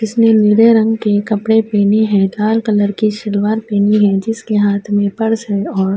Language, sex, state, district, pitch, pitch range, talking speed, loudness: Urdu, female, Uttar Pradesh, Budaun, 210 Hz, 205-220 Hz, 200 wpm, -13 LUFS